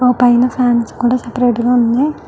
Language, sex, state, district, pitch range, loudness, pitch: Telugu, female, Andhra Pradesh, Chittoor, 240-250 Hz, -13 LUFS, 245 Hz